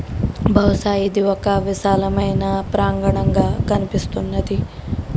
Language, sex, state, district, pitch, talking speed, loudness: Telugu, female, Telangana, Karimnagar, 195 Hz, 80 wpm, -19 LUFS